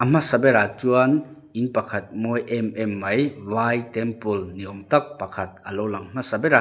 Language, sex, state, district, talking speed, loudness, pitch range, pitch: Mizo, male, Mizoram, Aizawl, 200 wpm, -23 LUFS, 105-130 Hz, 115 Hz